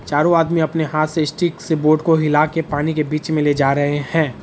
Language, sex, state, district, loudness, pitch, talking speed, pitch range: Hindi, male, Bihar, Araria, -17 LUFS, 155 Hz, 255 wpm, 150-160 Hz